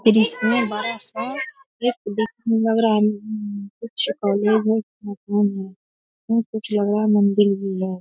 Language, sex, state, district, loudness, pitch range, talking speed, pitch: Hindi, female, Bihar, Darbhanga, -21 LUFS, 205-225 Hz, 170 wpm, 215 Hz